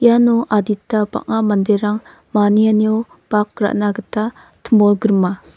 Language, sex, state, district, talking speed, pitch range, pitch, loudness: Garo, female, Meghalaya, North Garo Hills, 95 wpm, 205-225 Hz, 215 Hz, -16 LUFS